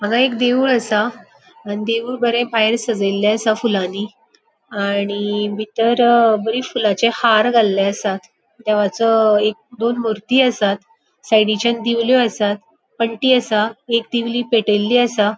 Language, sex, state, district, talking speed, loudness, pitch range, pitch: Konkani, female, Goa, North and South Goa, 125 wpm, -17 LUFS, 210-240 Hz, 225 Hz